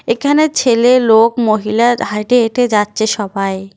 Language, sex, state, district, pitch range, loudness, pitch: Bengali, female, West Bengal, Cooch Behar, 210-245 Hz, -13 LUFS, 230 Hz